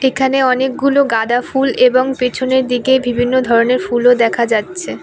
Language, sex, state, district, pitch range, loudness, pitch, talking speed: Bengali, female, West Bengal, Cooch Behar, 235-260 Hz, -14 LUFS, 250 Hz, 145 wpm